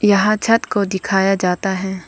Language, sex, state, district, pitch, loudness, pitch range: Hindi, female, Arunachal Pradesh, Papum Pare, 195 Hz, -17 LUFS, 190-210 Hz